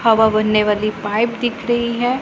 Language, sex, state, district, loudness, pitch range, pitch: Hindi, female, Punjab, Pathankot, -17 LUFS, 215-240 Hz, 225 Hz